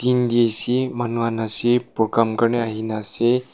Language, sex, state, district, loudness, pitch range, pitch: Nagamese, male, Nagaland, Kohima, -20 LUFS, 110-120 Hz, 115 Hz